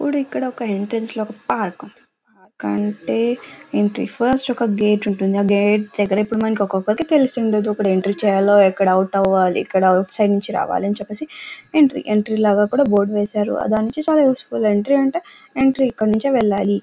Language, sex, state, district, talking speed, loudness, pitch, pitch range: Telugu, female, Karnataka, Bellary, 170 wpm, -18 LUFS, 210 Hz, 200-250 Hz